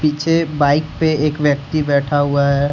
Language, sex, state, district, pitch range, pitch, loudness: Hindi, male, Jharkhand, Deoghar, 145-155 Hz, 145 Hz, -16 LUFS